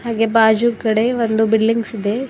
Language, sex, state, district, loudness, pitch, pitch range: Kannada, female, Karnataka, Bidar, -16 LUFS, 225 Hz, 220-235 Hz